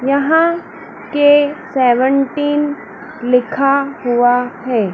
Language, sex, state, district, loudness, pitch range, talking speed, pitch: Hindi, female, Madhya Pradesh, Dhar, -14 LUFS, 250-290 Hz, 75 wpm, 275 Hz